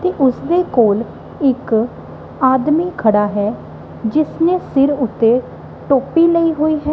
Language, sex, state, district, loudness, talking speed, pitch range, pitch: Punjabi, female, Punjab, Kapurthala, -16 LUFS, 120 wpm, 230-325 Hz, 275 Hz